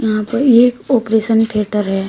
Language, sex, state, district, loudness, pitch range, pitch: Hindi, female, Uttar Pradesh, Shamli, -14 LUFS, 210-240 Hz, 225 Hz